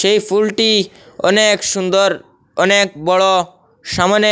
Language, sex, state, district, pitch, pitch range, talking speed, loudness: Bengali, male, Assam, Hailakandi, 195 Hz, 185-210 Hz, 110 wpm, -14 LUFS